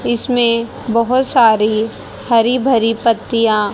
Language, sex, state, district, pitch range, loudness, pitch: Hindi, female, Haryana, Rohtak, 225-240 Hz, -14 LUFS, 230 Hz